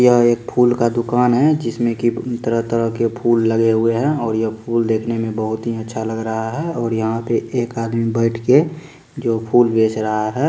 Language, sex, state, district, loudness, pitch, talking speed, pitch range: Maithili, male, Bihar, Supaul, -18 LUFS, 115 Hz, 210 wpm, 115-120 Hz